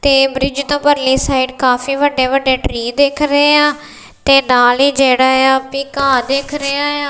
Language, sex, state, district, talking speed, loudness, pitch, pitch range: Punjabi, female, Punjab, Kapurthala, 170 wpm, -13 LUFS, 275 Hz, 260-285 Hz